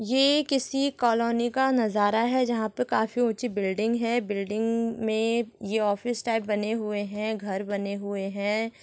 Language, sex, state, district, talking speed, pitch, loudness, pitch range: Hindi, female, Chhattisgarh, Sukma, 155 wpm, 225 Hz, -26 LUFS, 210-240 Hz